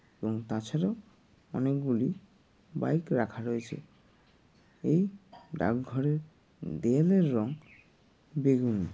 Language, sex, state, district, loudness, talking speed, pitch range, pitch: Bengali, male, West Bengal, Jalpaiguri, -31 LUFS, 75 wpm, 115-155 Hz, 135 Hz